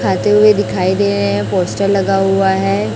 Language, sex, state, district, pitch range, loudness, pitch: Hindi, female, Chhattisgarh, Raipur, 185-200 Hz, -13 LUFS, 195 Hz